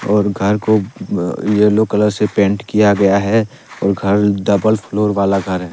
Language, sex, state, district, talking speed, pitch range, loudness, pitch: Hindi, male, Jharkhand, Deoghar, 190 wpm, 100-105 Hz, -15 LUFS, 105 Hz